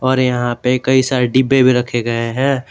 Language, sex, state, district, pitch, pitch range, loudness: Hindi, male, Jharkhand, Garhwa, 125 Hz, 120-130 Hz, -15 LUFS